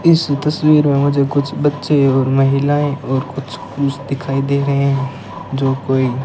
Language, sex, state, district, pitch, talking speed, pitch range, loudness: Hindi, male, Rajasthan, Bikaner, 140 Hz, 170 wpm, 135-145 Hz, -16 LUFS